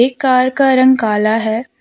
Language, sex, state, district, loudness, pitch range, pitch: Hindi, female, Jharkhand, Deoghar, -13 LUFS, 220-260 Hz, 255 Hz